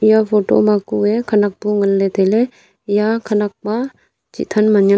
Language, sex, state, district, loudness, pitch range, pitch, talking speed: Wancho, female, Arunachal Pradesh, Longding, -16 LUFS, 205-220 Hz, 210 Hz, 180 wpm